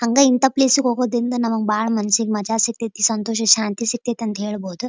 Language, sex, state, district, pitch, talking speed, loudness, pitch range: Kannada, female, Karnataka, Dharwad, 225 Hz, 195 wpm, -19 LUFS, 215-245 Hz